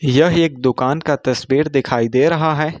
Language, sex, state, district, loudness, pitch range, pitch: Hindi, male, Uttar Pradesh, Lucknow, -16 LUFS, 130-155 Hz, 140 Hz